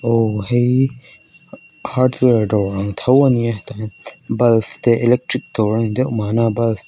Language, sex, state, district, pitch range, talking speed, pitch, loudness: Mizo, female, Mizoram, Aizawl, 110-125 Hz, 150 wpm, 115 Hz, -17 LUFS